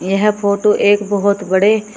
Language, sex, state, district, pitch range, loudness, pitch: Hindi, female, Uttar Pradesh, Shamli, 200-210 Hz, -14 LUFS, 205 Hz